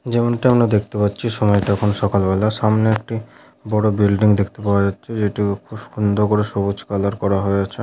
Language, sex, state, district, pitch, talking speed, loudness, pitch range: Bengali, male, West Bengal, Paschim Medinipur, 105 Hz, 175 wpm, -18 LUFS, 100-110 Hz